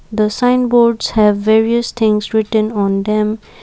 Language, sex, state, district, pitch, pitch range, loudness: English, female, Assam, Kamrup Metropolitan, 220 Hz, 210-230 Hz, -14 LUFS